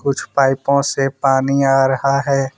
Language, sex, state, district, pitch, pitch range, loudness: Hindi, male, Jharkhand, Ranchi, 135 Hz, 135-140 Hz, -16 LUFS